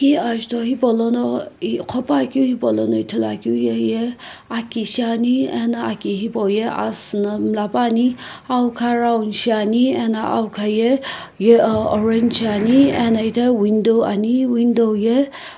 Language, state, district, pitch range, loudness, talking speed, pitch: Sumi, Nagaland, Kohima, 210-245 Hz, -18 LUFS, 120 wpm, 230 Hz